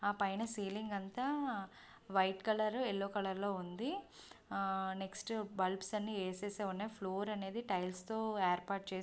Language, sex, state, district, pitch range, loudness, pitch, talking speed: Telugu, female, Andhra Pradesh, Visakhapatnam, 190-215 Hz, -40 LUFS, 200 Hz, 125 wpm